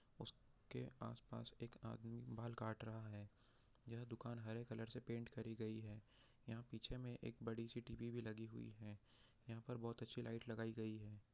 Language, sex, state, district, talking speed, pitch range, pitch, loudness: Hindi, male, Bihar, Jahanabad, 190 wpm, 110-120 Hz, 115 Hz, -52 LUFS